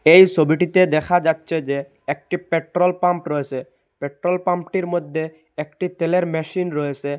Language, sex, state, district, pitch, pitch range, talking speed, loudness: Bengali, male, Assam, Hailakandi, 165 Hz, 150-180 Hz, 135 wpm, -20 LUFS